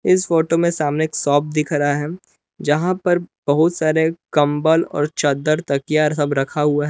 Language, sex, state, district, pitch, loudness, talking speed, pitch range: Hindi, male, Jharkhand, Palamu, 155 Hz, -18 LUFS, 185 wpm, 145-165 Hz